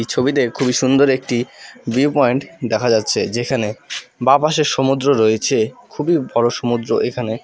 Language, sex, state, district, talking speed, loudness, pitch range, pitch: Bengali, male, West Bengal, Alipurduar, 120 wpm, -17 LUFS, 120-140 Hz, 125 Hz